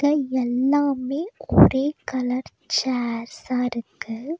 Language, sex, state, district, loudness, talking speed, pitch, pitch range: Tamil, female, Tamil Nadu, Nilgiris, -23 LUFS, 70 wpm, 260 Hz, 245-285 Hz